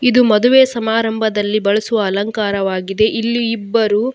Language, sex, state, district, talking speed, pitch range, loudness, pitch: Kannada, female, Karnataka, Dakshina Kannada, 100 wpm, 205-230 Hz, -15 LUFS, 220 Hz